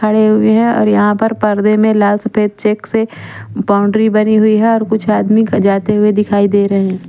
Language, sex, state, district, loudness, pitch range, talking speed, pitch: Hindi, female, Chandigarh, Chandigarh, -12 LUFS, 205-220 Hz, 220 wpm, 215 Hz